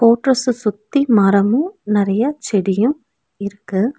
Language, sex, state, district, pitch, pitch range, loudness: Tamil, female, Tamil Nadu, Nilgiris, 225 Hz, 200-265 Hz, -17 LUFS